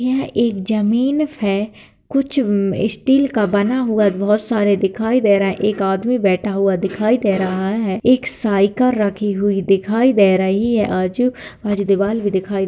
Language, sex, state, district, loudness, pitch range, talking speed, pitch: Hindi, female, Bihar, Lakhisarai, -17 LUFS, 195-235 Hz, 180 wpm, 205 Hz